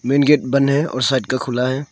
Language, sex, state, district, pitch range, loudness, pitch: Hindi, male, Arunachal Pradesh, Longding, 130-140 Hz, -17 LUFS, 135 Hz